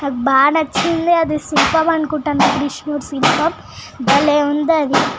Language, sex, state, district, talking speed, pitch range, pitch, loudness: Telugu, female, Telangana, Nalgonda, 115 wpm, 280-315 Hz, 295 Hz, -15 LUFS